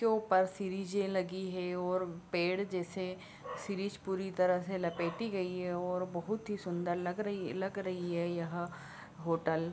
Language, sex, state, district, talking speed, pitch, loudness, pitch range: Hindi, female, Bihar, Bhagalpur, 150 wpm, 185 Hz, -36 LUFS, 175-190 Hz